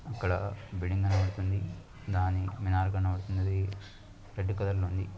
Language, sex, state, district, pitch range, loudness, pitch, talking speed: Telugu, male, Andhra Pradesh, Anantapur, 95-100 Hz, -32 LUFS, 95 Hz, 115 wpm